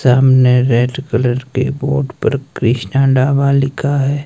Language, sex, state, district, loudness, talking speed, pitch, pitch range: Hindi, male, Himachal Pradesh, Shimla, -14 LUFS, 140 wpm, 135 Hz, 125-140 Hz